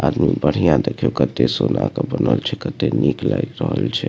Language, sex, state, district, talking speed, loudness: Maithili, male, Bihar, Supaul, 190 wpm, -19 LUFS